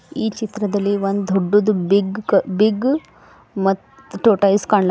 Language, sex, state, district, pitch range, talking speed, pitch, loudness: Kannada, female, Karnataka, Bidar, 195-215 Hz, 110 wpm, 205 Hz, -18 LUFS